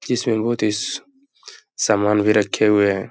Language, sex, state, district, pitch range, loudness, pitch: Hindi, male, Uttar Pradesh, Hamirpur, 105-130 Hz, -19 LUFS, 110 Hz